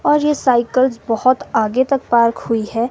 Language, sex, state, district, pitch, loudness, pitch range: Hindi, female, Himachal Pradesh, Shimla, 240 Hz, -16 LUFS, 230-260 Hz